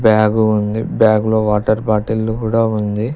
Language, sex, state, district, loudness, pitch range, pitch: Telugu, male, Telangana, Mahabubabad, -15 LUFS, 105-110 Hz, 110 Hz